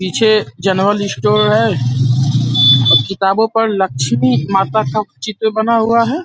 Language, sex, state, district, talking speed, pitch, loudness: Hindi, male, Uttar Pradesh, Ghazipur, 135 wpm, 190 Hz, -13 LUFS